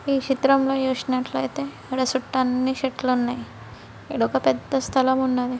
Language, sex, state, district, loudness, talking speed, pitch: Telugu, female, Andhra Pradesh, Srikakulam, -23 LUFS, 120 wpm, 255 Hz